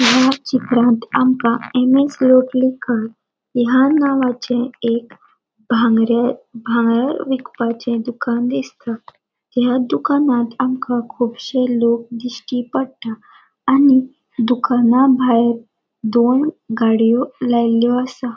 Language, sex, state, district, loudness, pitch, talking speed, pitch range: Konkani, female, Goa, North and South Goa, -17 LUFS, 245 Hz, 90 wpm, 235-260 Hz